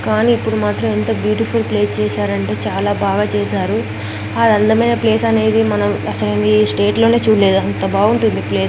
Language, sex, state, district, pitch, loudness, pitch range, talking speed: Telugu, female, Telangana, Karimnagar, 105 Hz, -15 LUFS, 105-120 Hz, 165 wpm